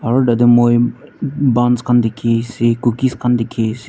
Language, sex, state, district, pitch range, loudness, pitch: Nagamese, male, Nagaland, Dimapur, 115-125 Hz, -15 LUFS, 120 Hz